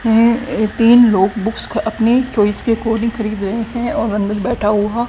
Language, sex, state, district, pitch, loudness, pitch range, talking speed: Hindi, female, Haryana, Jhajjar, 225 Hz, -15 LUFS, 210-235 Hz, 190 wpm